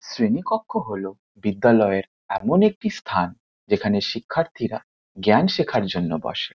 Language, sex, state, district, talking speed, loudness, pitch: Bengali, male, West Bengal, Kolkata, 110 wpm, -22 LUFS, 115 Hz